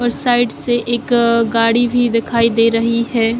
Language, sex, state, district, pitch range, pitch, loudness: Hindi, female, Bihar, Kishanganj, 230-240 Hz, 235 Hz, -15 LUFS